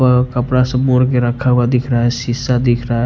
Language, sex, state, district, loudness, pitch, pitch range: Hindi, male, Punjab, Pathankot, -15 LUFS, 125 Hz, 120-125 Hz